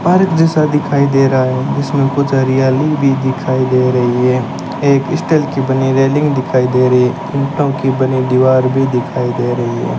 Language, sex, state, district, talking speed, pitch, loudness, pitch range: Hindi, male, Rajasthan, Bikaner, 190 wpm, 135 Hz, -13 LUFS, 130-140 Hz